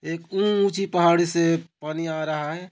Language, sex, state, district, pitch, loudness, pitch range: Chhattisgarhi, male, Chhattisgarh, Korba, 170 Hz, -23 LUFS, 160-180 Hz